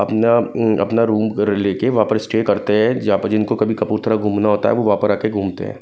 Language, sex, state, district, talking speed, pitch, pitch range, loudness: Hindi, male, Punjab, Kapurthala, 245 wpm, 110 Hz, 105-110 Hz, -17 LUFS